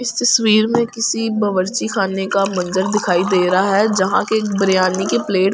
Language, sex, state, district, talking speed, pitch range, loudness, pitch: Hindi, female, Delhi, New Delhi, 215 wpm, 190-220 Hz, -16 LUFS, 200 Hz